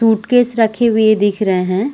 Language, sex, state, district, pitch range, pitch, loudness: Hindi, female, Chhattisgarh, Sarguja, 205-235 Hz, 220 Hz, -14 LUFS